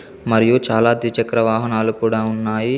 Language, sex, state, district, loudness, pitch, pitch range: Telugu, male, Telangana, Komaram Bheem, -17 LUFS, 115 Hz, 110-120 Hz